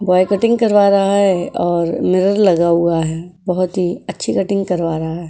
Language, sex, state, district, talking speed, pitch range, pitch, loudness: Hindi, female, Uttar Pradesh, Etah, 190 wpm, 170-200 Hz, 180 Hz, -15 LUFS